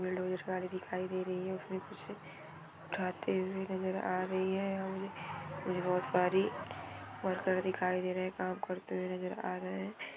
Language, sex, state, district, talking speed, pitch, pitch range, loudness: Hindi, female, Bihar, Gopalganj, 175 wpm, 185 Hz, 180-185 Hz, -37 LUFS